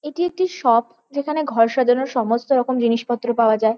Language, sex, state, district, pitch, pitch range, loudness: Bengali, female, West Bengal, Kolkata, 245 Hz, 230-285 Hz, -19 LUFS